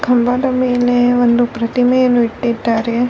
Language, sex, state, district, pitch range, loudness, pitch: Kannada, female, Karnataka, Bellary, 235-250 Hz, -14 LUFS, 245 Hz